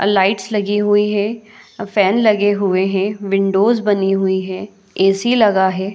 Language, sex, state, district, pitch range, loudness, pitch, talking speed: Hindi, female, Chhattisgarh, Bilaspur, 195-210 Hz, -16 LUFS, 200 Hz, 170 wpm